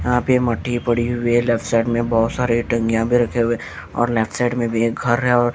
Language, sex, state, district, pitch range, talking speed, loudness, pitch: Hindi, male, Haryana, Jhajjar, 115-120 Hz, 260 wpm, -19 LUFS, 120 Hz